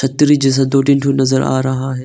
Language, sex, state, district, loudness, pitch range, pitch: Hindi, male, Arunachal Pradesh, Longding, -14 LUFS, 130-140 Hz, 135 Hz